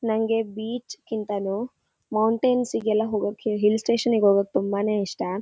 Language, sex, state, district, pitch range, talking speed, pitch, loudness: Kannada, female, Karnataka, Shimoga, 205-230 Hz, 135 wpm, 215 Hz, -24 LUFS